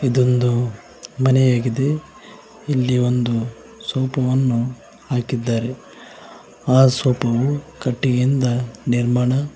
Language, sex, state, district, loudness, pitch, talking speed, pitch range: Kannada, male, Karnataka, Koppal, -19 LUFS, 125 Hz, 80 wpm, 120-130 Hz